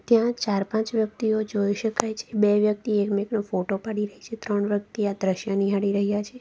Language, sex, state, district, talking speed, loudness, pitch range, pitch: Gujarati, female, Gujarat, Valsad, 205 wpm, -25 LUFS, 200-220 Hz, 210 Hz